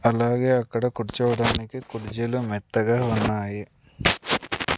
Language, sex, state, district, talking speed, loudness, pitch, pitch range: Telugu, male, Andhra Pradesh, Sri Satya Sai, 75 wpm, -24 LUFS, 115 Hz, 110-125 Hz